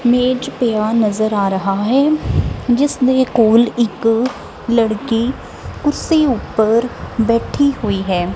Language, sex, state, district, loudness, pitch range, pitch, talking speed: Punjabi, female, Punjab, Kapurthala, -16 LUFS, 215-255 Hz, 230 Hz, 110 wpm